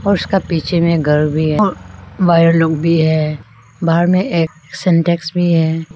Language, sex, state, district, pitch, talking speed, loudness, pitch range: Hindi, female, Arunachal Pradesh, Longding, 165 Hz, 170 wpm, -14 LUFS, 160-175 Hz